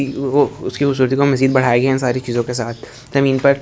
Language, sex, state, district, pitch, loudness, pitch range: Hindi, male, Delhi, New Delhi, 135 Hz, -17 LUFS, 125-140 Hz